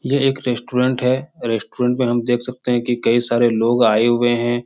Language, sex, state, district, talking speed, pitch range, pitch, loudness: Hindi, male, Bihar, Supaul, 245 wpm, 120-125 Hz, 120 Hz, -18 LUFS